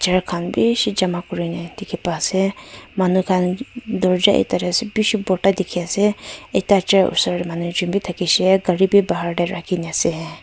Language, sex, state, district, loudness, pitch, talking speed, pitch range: Nagamese, female, Nagaland, Kohima, -19 LUFS, 185 Hz, 180 wpm, 175-200 Hz